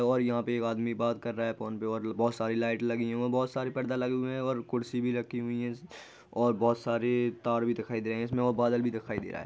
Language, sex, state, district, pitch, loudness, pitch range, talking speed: Hindi, male, Bihar, Jahanabad, 120 Hz, -31 LUFS, 115-125 Hz, 310 wpm